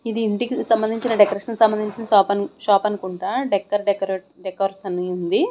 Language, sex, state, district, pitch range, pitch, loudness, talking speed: Telugu, female, Andhra Pradesh, Sri Satya Sai, 195-225 Hz, 205 Hz, -21 LUFS, 155 wpm